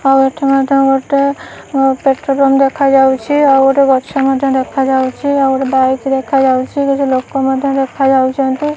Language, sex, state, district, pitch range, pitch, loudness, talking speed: Odia, female, Odisha, Nuapada, 265-275 Hz, 270 Hz, -12 LUFS, 130 wpm